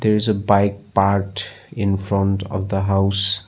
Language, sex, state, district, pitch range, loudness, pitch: English, male, Assam, Sonitpur, 95-100 Hz, -20 LUFS, 100 Hz